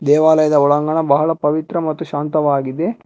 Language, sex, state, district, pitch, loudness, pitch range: Kannada, male, Karnataka, Bangalore, 150 Hz, -16 LUFS, 145-160 Hz